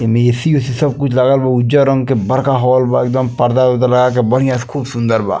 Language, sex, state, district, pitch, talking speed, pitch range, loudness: Bhojpuri, male, Bihar, East Champaran, 130 Hz, 245 wpm, 125-135 Hz, -13 LUFS